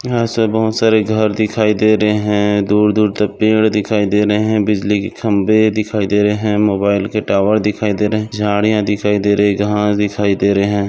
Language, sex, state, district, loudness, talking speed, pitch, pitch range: Hindi, male, Maharashtra, Aurangabad, -14 LUFS, 215 wpm, 105 Hz, 105-110 Hz